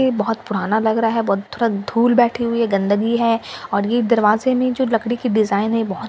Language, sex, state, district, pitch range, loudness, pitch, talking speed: Hindi, female, Bihar, Katihar, 210-235 Hz, -18 LUFS, 225 Hz, 275 wpm